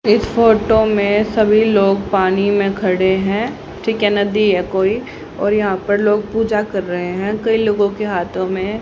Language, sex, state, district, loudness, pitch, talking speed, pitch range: Hindi, female, Haryana, Jhajjar, -16 LUFS, 205 Hz, 185 wpm, 195-215 Hz